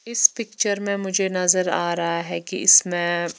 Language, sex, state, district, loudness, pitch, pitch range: Hindi, female, Chandigarh, Chandigarh, -20 LUFS, 185 Hz, 175-200 Hz